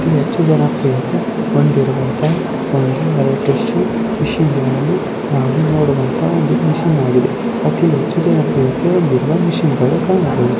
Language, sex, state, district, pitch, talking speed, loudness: Kannada, female, Karnataka, Raichur, 130 Hz, 95 wpm, -15 LUFS